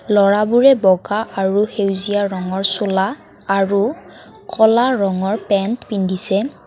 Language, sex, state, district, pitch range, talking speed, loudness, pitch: Assamese, female, Assam, Kamrup Metropolitan, 195-220 Hz, 100 wpm, -16 LUFS, 200 Hz